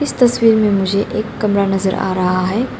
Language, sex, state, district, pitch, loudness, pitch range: Hindi, female, Arunachal Pradesh, Lower Dibang Valley, 200 Hz, -15 LUFS, 190-225 Hz